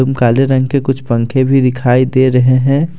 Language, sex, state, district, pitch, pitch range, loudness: Hindi, male, Jharkhand, Deoghar, 130 Hz, 125-135 Hz, -12 LUFS